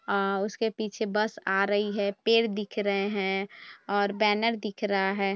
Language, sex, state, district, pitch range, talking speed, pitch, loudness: Hindi, female, Bihar, Purnia, 195-215 Hz, 180 wpm, 205 Hz, -27 LUFS